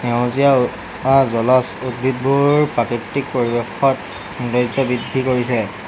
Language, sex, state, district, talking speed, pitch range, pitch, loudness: Assamese, male, Assam, Hailakandi, 80 wpm, 120-135 Hz, 125 Hz, -17 LUFS